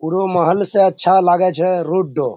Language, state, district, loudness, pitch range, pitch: Surjapuri, Bihar, Kishanganj, -15 LUFS, 175-190 Hz, 180 Hz